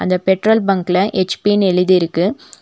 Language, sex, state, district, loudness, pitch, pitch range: Tamil, female, Tamil Nadu, Nilgiris, -15 LUFS, 190 Hz, 185-205 Hz